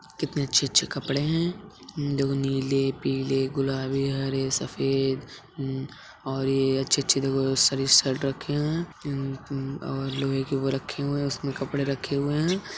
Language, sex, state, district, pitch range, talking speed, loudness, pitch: Hindi, male, Uttar Pradesh, Hamirpur, 135-140 Hz, 150 wpm, -26 LUFS, 135 Hz